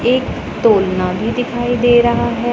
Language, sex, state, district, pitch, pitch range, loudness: Hindi, female, Punjab, Pathankot, 240 Hz, 220-245 Hz, -15 LUFS